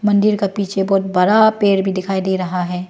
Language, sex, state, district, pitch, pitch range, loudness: Hindi, female, Arunachal Pradesh, Lower Dibang Valley, 195 Hz, 185-205 Hz, -16 LUFS